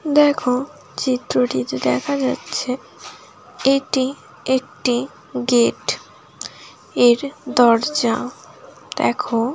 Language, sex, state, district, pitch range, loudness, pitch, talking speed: Bengali, female, West Bengal, Jhargram, 230-275 Hz, -19 LUFS, 250 Hz, 65 wpm